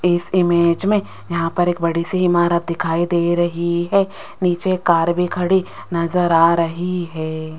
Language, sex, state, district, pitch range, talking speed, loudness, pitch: Hindi, female, Rajasthan, Jaipur, 170-180 Hz, 165 wpm, -18 LUFS, 175 Hz